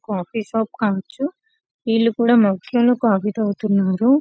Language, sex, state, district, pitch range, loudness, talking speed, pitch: Telugu, female, Telangana, Karimnagar, 205-240 Hz, -19 LUFS, 100 wpm, 225 Hz